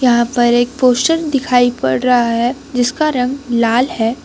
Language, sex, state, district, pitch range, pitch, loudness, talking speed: Hindi, female, Jharkhand, Garhwa, 240-265 Hz, 245 Hz, -14 LUFS, 170 wpm